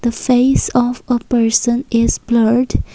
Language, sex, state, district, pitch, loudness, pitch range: English, female, Assam, Kamrup Metropolitan, 240 Hz, -15 LUFS, 230-245 Hz